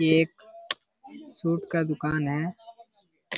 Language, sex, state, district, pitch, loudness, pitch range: Hindi, male, Jharkhand, Jamtara, 170 Hz, -28 LUFS, 160-230 Hz